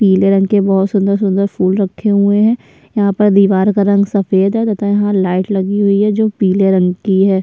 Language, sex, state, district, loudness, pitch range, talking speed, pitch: Hindi, female, Chhattisgarh, Sukma, -13 LUFS, 195-205 Hz, 220 wpm, 200 Hz